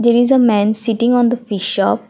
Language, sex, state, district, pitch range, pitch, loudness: English, female, Assam, Kamrup Metropolitan, 210-240 Hz, 235 Hz, -14 LUFS